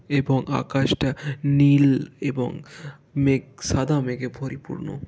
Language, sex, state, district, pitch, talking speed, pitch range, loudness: Bengali, male, West Bengal, Kolkata, 140 Hz, 95 wpm, 130-145 Hz, -23 LUFS